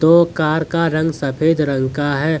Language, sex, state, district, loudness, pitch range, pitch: Hindi, male, Jharkhand, Deoghar, -17 LUFS, 145-160 Hz, 155 Hz